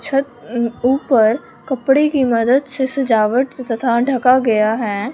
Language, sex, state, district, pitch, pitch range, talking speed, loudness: Hindi, male, Punjab, Fazilka, 255 Hz, 230-270 Hz, 130 wpm, -16 LUFS